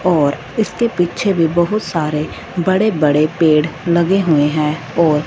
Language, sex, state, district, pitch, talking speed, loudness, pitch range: Hindi, female, Punjab, Fazilka, 170 Hz, 150 wpm, -16 LUFS, 150-185 Hz